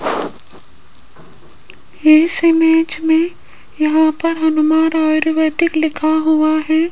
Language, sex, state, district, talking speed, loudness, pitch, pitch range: Hindi, female, Rajasthan, Jaipur, 85 wpm, -14 LUFS, 315 Hz, 310-325 Hz